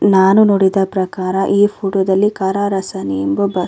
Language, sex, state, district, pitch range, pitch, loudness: Kannada, female, Karnataka, Raichur, 190-200 Hz, 195 Hz, -15 LUFS